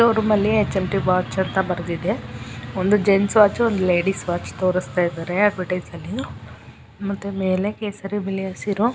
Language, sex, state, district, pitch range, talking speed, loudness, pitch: Kannada, female, Karnataka, Chamarajanagar, 175-205 Hz, 135 wpm, -21 LUFS, 190 Hz